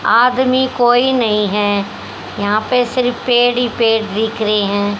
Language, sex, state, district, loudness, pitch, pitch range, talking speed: Hindi, female, Haryana, Rohtak, -15 LUFS, 230 Hz, 210-245 Hz, 155 wpm